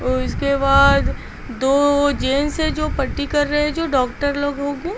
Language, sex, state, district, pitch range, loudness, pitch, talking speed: Hindi, female, Bihar, Patna, 275-295 Hz, -18 LUFS, 285 Hz, 195 wpm